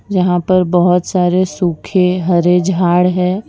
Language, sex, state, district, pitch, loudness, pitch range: Hindi, female, Gujarat, Valsad, 180 Hz, -13 LUFS, 180-185 Hz